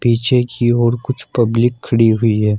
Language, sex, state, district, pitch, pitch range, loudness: Hindi, male, Uttar Pradesh, Saharanpur, 120 Hz, 115-120 Hz, -15 LUFS